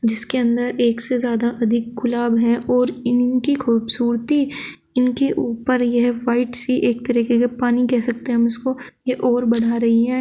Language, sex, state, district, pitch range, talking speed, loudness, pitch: Hindi, female, Uttar Pradesh, Shamli, 235-250 Hz, 175 wpm, -18 LUFS, 240 Hz